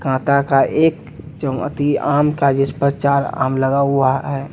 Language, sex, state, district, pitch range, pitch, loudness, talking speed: Hindi, male, Bihar, West Champaran, 135-145 Hz, 140 Hz, -17 LUFS, 145 wpm